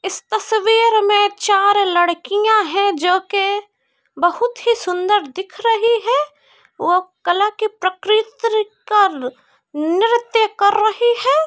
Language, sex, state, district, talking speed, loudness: Hindi, female, Bihar, Kishanganj, 120 wpm, -16 LUFS